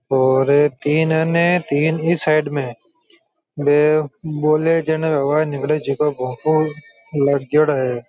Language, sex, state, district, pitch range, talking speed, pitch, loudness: Rajasthani, male, Rajasthan, Churu, 140-160 Hz, 60 wpm, 150 Hz, -18 LUFS